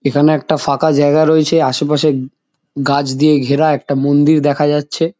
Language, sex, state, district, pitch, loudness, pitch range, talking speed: Bengali, male, West Bengal, Jhargram, 145 Hz, -13 LUFS, 140-155 Hz, 150 wpm